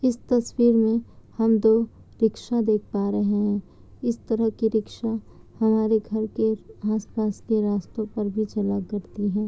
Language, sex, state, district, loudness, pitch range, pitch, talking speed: Hindi, female, Bihar, Kishanganj, -24 LUFS, 210-225 Hz, 220 Hz, 165 wpm